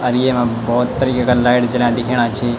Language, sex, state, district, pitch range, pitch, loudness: Garhwali, male, Uttarakhand, Tehri Garhwal, 120-125 Hz, 125 Hz, -16 LUFS